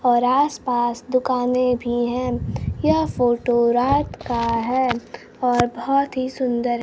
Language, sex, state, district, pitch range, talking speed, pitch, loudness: Hindi, female, Bihar, Kaimur, 240-255 Hz, 130 wpm, 245 Hz, -21 LUFS